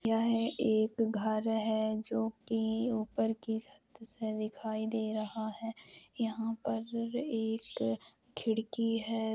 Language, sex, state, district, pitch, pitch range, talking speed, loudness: Hindi, female, Jharkhand, Jamtara, 225 Hz, 220-225 Hz, 120 wpm, -34 LUFS